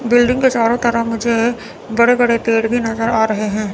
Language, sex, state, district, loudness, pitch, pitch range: Hindi, female, Chandigarh, Chandigarh, -15 LUFS, 230 Hz, 225-240 Hz